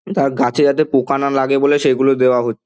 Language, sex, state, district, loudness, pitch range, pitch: Bengali, male, West Bengal, Dakshin Dinajpur, -15 LUFS, 130-140 Hz, 135 Hz